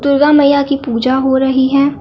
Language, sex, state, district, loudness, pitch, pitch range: Hindi, female, Uttar Pradesh, Lucknow, -12 LUFS, 275 Hz, 265-280 Hz